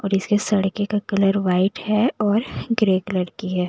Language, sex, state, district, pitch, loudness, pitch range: Hindi, female, Bihar, Patna, 200 Hz, -21 LUFS, 190-210 Hz